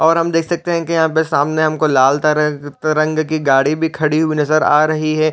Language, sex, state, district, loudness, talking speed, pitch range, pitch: Hindi, male, Chhattisgarh, Raigarh, -15 LUFS, 235 wpm, 150-160 Hz, 155 Hz